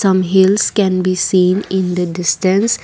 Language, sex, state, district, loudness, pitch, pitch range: English, female, Assam, Kamrup Metropolitan, -14 LUFS, 185 Hz, 180-195 Hz